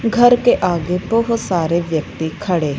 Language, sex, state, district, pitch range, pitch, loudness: Hindi, female, Punjab, Fazilka, 165-230 Hz, 180 Hz, -17 LUFS